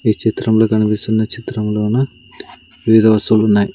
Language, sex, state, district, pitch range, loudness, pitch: Telugu, male, Andhra Pradesh, Sri Satya Sai, 105-115 Hz, -15 LUFS, 110 Hz